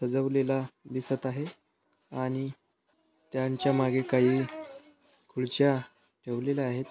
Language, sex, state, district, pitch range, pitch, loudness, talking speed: Marathi, male, Maharashtra, Sindhudurg, 130-145 Hz, 135 Hz, -30 LUFS, 85 wpm